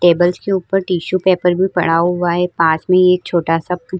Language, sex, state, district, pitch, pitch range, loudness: Hindi, female, Uttar Pradesh, Varanasi, 180 Hz, 170-185 Hz, -15 LUFS